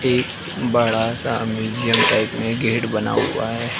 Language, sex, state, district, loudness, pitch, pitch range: Hindi, male, Uttar Pradesh, Varanasi, -20 LUFS, 115 Hz, 110-120 Hz